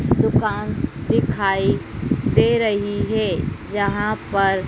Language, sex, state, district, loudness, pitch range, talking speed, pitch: Hindi, female, Madhya Pradesh, Dhar, -20 LUFS, 195-215 Hz, 90 wpm, 205 Hz